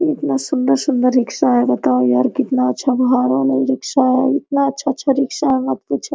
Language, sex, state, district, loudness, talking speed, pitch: Hindi, female, Jharkhand, Sahebganj, -16 LUFS, 185 wpm, 260 Hz